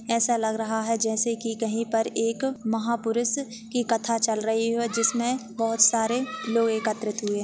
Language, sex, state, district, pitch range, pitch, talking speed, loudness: Hindi, female, Chhattisgarh, Jashpur, 225-235 Hz, 230 Hz, 170 wpm, -25 LUFS